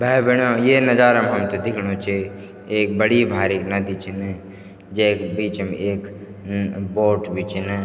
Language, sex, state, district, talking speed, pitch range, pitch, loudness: Garhwali, male, Uttarakhand, Tehri Garhwal, 155 wpm, 100-105 Hz, 100 Hz, -20 LUFS